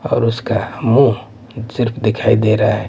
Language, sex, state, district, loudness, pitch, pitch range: Hindi, male, Maharashtra, Mumbai Suburban, -15 LUFS, 115 Hz, 110-120 Hz